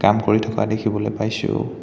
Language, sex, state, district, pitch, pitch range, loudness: Assamese, male, Assam, Hailakandi, 110 Hz, 105-110 Hz, -21 LUFS